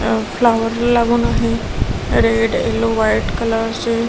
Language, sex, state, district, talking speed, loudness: Marathi, female, Maharashtra, Washim, 145 wpm, -17 LUFS